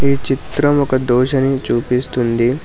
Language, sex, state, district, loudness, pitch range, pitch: Telugu, male, Telangana, Hyderabad, -16 LUFS, 125-140 Hz, 130 Hz